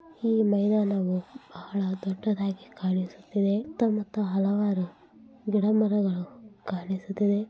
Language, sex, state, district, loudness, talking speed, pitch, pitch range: Kannada, female, Karnataka, Bellary, -28 LUFS, 80 wpm, 205 Hz, 195-215 Hz